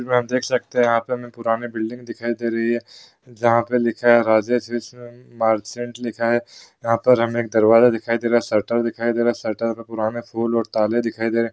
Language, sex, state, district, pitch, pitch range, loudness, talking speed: Hindi, male, Bihar, Gaya, 115 Hz, 115-120 Hz, -20 LUFS, 240 wpm